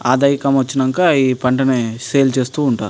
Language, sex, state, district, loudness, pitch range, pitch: Telugu, male, Andhra Pradesh, Anantapur, -16 LUFS, 125-140 Hz, 130 Hz